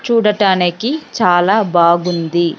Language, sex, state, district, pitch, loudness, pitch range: Telugu, female, Andhra Pradesh, Sri Satya Sai, 180 Hz, -14 LUFS, 175-220 Hz